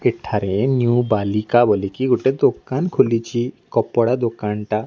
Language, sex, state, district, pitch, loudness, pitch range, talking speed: Odia, male, Odisha, Nuapada, 120 Hz, -19 LUFS, 105-125 Hz, 125 wpm